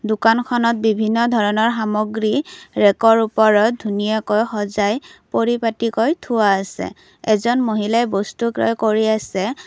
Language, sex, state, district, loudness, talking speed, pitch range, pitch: Assamese, female, Assam, Kamrup Metropolitan, -18 LUFS, 105 wpm, 215-235 Hz, 220 Hz